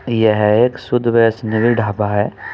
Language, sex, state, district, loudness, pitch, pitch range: Hindi, male, Uttar Pradesh, Saharanpur, -15 LUFS, 115 Hz, 105-120 Hz